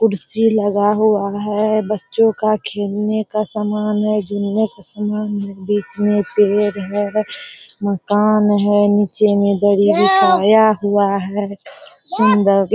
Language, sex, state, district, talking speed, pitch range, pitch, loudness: Hindi, female, Bihar, Purnia, 120 wpm, 200-215 Hz, 205 Hz, -16 LUFS